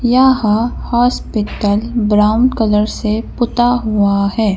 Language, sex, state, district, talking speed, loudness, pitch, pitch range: Hindi, female, Madhya Pradesh, Bhopal, 105 wpm, -14 LUFS, 220 Hz, 210-240 Hz